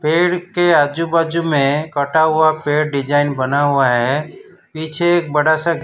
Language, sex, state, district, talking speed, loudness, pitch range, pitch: Hindi, male, Gujarat, Valsad, 165 wpm, -15 LUFS, 145-165 Hz, 155 Hz